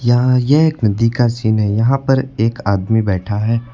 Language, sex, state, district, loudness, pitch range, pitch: Hindi, male, Uttar Pradesh, Lucknow, -15 LUFS, 105-125 Hz, 115 Hz